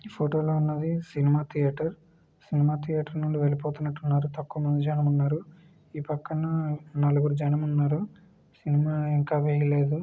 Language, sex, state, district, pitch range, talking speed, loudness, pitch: Telugu, male, Andhra Pradesh, Srikakulam, 145-155 Hz, 130 wpm, -27 LUFS, 150 Hz